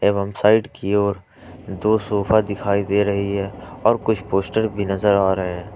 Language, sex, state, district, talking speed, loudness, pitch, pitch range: Hindi, male, Jharkhand, Ranchi, 200 wpm, -20 LUFS, 100 Hz, 100-105 Hz